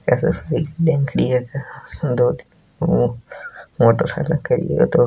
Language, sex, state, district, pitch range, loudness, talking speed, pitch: Hindi, male, Rajasthan, Nagaur, 125-160 Hz, -19 LUFS, 105 wpm, 150 Hz